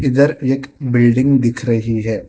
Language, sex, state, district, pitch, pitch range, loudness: Hindi, female, Telangana, Hyderabad, 130 Hz, 120-135 Hz, -15 LUFS